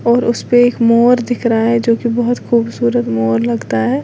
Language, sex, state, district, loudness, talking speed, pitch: Hindi, female, Uttar Pradesh, Lalitpur, -14 LUFS, 225 wpm, 235 Hz